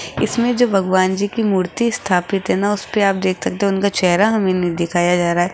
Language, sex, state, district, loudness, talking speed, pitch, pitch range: Hindi, female, Rajasthan, Jaipur, -17 LUFS, 250 wpm, 195 Hz, 180-210 Hz